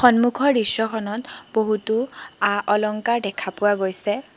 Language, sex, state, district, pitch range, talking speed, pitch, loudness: Assamese, female, Assam, Sonitpur, 205-235 Hz, 80 wpm, 215 Hz, -22 LUFS